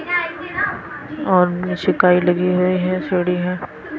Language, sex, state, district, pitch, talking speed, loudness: Hindi, female, Himachal Pradesh, Shimla, 180 Hz, 120 wpm, -18 LUFS